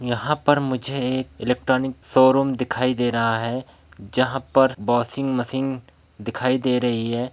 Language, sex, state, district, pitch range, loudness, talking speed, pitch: Hindi, male, Bihar, Begusarai, 120-130 Hz, -22 LUFS, 145 wpm, 130 Hz